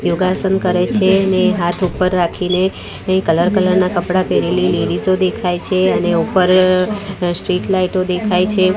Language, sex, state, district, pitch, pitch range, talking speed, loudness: Gujarati, female, Gujarat, Gandhinagar, 185 Hz, 180-190 Hz, 155 wpm, -15 LUFS